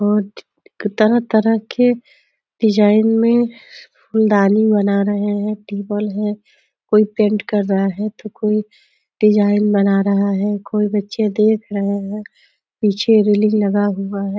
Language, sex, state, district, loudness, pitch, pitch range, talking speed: Hindi, female, Uttar Pradesh, Deoria, -17 LUFS, 210 Hz, 205-220 Hz, 140 wpm